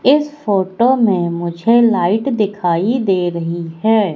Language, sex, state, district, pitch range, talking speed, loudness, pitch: Hindi, female, Madhya Pradesh, Katni, 175-235 Hz, 130 wpm, -15 LUFS, 205 Hz